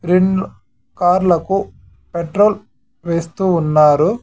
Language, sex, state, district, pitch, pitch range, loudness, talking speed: Telugu, male, Andhra Pradesh, Sri Satya Sai, 170 Hz, 150-190 Hz, -16 LUFS, 70 wpm